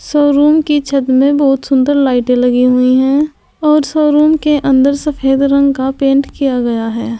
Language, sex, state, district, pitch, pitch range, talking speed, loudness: Hindi, female, Uttar Pradesh, Saharanpur, 275 Hz, 260-295 Hz, 175 wpm, -12 LUFS